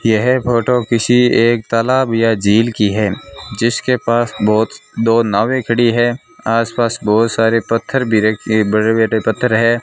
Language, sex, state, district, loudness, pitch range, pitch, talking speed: Hindi, male, Rajasthan, Bikaner, -14 LUFS, 110-120 Hz, 115 Hz, 155 wpm